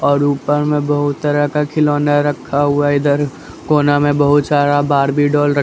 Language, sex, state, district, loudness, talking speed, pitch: Hindi, male, Bihar, Patna, -15 LUFS, 200 wpm, 145 Hz